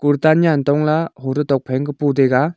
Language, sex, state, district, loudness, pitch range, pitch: Wancho, male, Arunachal Pradesh, Longding, -17 LUFS, 135-155 Hz, 145 Hz